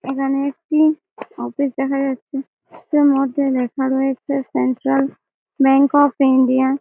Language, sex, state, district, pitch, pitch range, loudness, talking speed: Bengali, female, West Bengal, Malda, 275 Hz, 265-285 Hz, -18 LUFS, 125 wpm